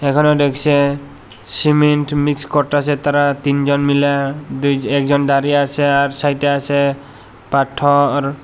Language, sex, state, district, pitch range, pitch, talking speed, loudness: Bengali, male, Tripura, Unakoti, 140-145 Hz, 140 Hz, 120 wpm, -15 LUFS